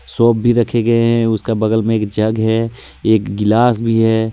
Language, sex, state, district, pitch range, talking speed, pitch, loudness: Hindi, male, Jharkhand, Deoghar, 110-115 Hz, 205 wpm, 115 Hz, -15 LUFS